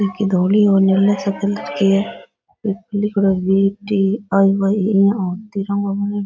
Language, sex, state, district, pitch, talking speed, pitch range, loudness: Rajasthani, female, Rajasthan, Nagaur, 200 Hz, 200 wpm, 195-205 Hz, -17 LUFS